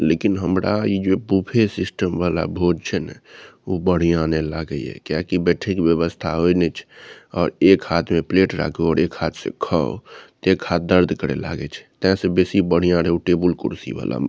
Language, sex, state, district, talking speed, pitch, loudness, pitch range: Maithili, male, Bihar, Saharsa, 210 wpm, 90 Hz, -20 LUFS, 85-95 Hz